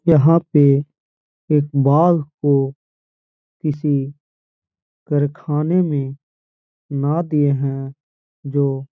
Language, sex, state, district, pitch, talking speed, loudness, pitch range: Hindi, male, Uttar Pradesh, Hamirpur, 145 Hz, 85 wpm, -18 LUFS, 140-150 Hz